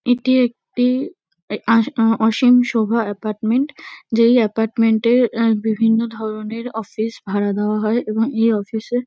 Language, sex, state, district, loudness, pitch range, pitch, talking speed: Bengali, female, West Bengal, Kolkata, -18 LUFS, 220-245 Hz, 225 Hz, 150 wpm